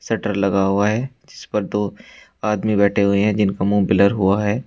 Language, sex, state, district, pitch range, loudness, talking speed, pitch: Hindi, male, Uttar Pradesh, Shamli, 100-105 Hz, -19 LUFS, 205 wpm, 100 Hz